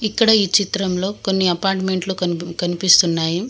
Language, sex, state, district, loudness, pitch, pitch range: Telugu, female, Telangana, Mahabubabad, -17 LUFS, 190 Hz, 175-200 Hz